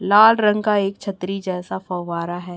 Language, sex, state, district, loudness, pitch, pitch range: Hindi, female, Chhattisgarh, Raipur, -20 LUFS, 195 Hz, 180-210 Hz